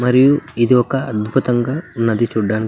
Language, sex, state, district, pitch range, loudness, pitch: Telugu, male, Andhra Pradesh, Anantapur, 115-135 Hz, -16 LUFS, 120 Hz